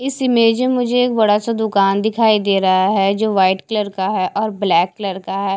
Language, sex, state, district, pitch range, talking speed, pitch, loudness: Hindi, female, Haryana, Charkhi Dadri, 195-225 Hz, 235 wpm, 210 Hz, -16 LUFS